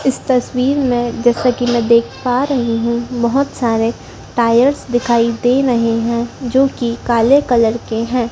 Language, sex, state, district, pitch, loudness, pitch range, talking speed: Hindi, female, Madhya Pradesh, Dhar, 240 Hz, -15 LUFS, 235-255 Hz, 165 wpm